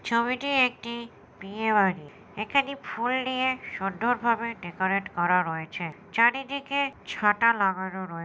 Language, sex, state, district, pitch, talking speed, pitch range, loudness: Bengali, female, West Bengal, Jhargram, 220 Hz, 110 wpm, 190-245 Hz, -26 LUFS